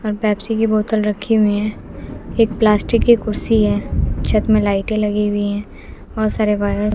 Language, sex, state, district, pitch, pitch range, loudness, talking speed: Hindi, female, Bihar, West Champaran, 215 Hz, 205-220 Hz, -17 LUFS, 190 wpm